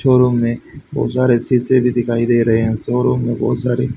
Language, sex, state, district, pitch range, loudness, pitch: Hindi, male, Haryana, Charkhi Dadri, 115-130 Hz, -16 LUFS, 120 Hz